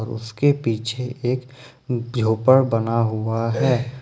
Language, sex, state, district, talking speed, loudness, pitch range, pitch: Hindi, male, Jharkhand, Ranchi, 105 wpm, -21 LUFS, 115-130 Hz, 120 Hz